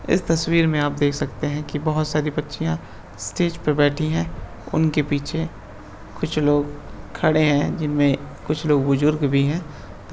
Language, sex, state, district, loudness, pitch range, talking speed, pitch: Hindi, male, Uttar Pradesh, Budaun, -22 LUFS, 140-155 Hz, 170 wpm, 150 Hz